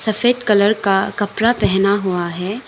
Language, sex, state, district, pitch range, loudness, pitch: Hindi, female, Arunachal Pradesh, Lower Dibang Valley, 195-220 Hz, -16 LUFS, 205 Hz